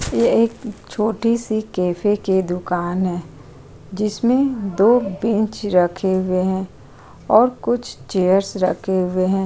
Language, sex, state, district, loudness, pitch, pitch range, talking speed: Hindi, female, Uttar Pradesh, Jyotiba Phule Nagar, -19 LUFS, 190 Hz, 180-215 Hz, 125 wpm